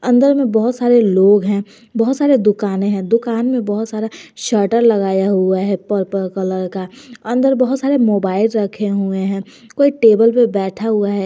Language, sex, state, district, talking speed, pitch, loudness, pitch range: Hindi, female, Jharkhand, Garhwa, 180 wpm, 215 Hz, -15 LUFS, 195-240 Hz